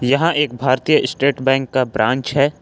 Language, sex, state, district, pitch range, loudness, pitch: Hindi, male, Jharkhand, Ranchi, 130-145 Hz, -17 LUFS, 135 Hz